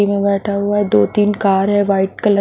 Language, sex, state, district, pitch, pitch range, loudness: Hindi, female, Haryana, Rohtak, 200 Hz, 195-205 Hz, -15 LUFS